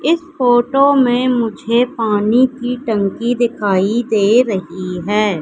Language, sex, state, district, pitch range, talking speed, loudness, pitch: Hindi, female, Madhya Pradesh, Katni, 205-250 Hz, 120 wpm, -15 LUFS, 235 Hz